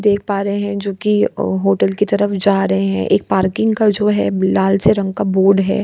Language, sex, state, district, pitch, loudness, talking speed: Hindi, female, Bihar, Kishanganj, 200 Hz, -16 LUFS, 245 wpm